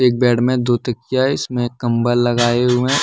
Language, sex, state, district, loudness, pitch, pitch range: Hindi, male, Jharkhand, Deoghar, -17 LUFS, 120 Hz, 120-125 Hz